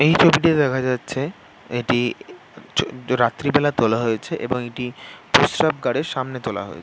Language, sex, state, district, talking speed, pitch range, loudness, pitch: Bengali, male, West Bengal, North 24 Parganas, 140 wpm, 120-145 Hz, -21 LUFS, 125 Hz